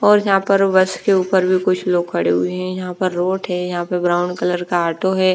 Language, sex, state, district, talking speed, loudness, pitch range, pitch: Hindi, female, Bihar, Patna, 270 wpm, -18 LUFS, 175-190 Hz, 185 Hz